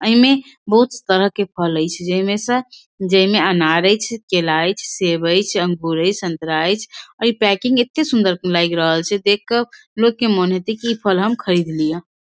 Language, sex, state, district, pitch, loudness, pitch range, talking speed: Maithili, female, Bihar, Darbhanga, 195 Hz, -17 LUFS, 175-230 Hz, 200 wpm